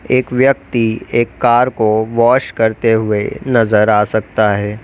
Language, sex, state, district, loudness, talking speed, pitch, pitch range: Hindi, male, Uttar Pradesh, Lalitpur, -14 LUFS, 150 wpm, 110 Hz, 110-120 Hz